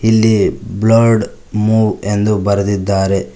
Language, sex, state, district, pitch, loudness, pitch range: Kannada, male, Karnataka, Koppal, 105 Hz, -14 LUFS, 100-110 Hz